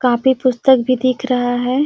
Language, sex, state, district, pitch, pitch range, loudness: Hindi, female, Chhattisgarh, Sarguja, 255 Hz, 245-260 Hz, -15 LUFS